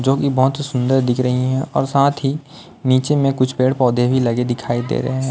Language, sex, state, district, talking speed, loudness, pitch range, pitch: Hindi, male, Chhattisgarh, Raipur, 235 wpm, -17 LUFS, 125-135 Hz, 130 Hz